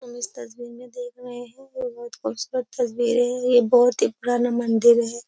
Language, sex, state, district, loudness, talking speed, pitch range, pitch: Hindi, female, Uttar Pradesh, Jyotiba Phule Nagar, -21 LUFS, 205 wpm, 240-250 Hz, 245 Hz